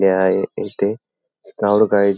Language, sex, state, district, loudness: Marathi, male, Maharashtra, Pune, -18 LUFS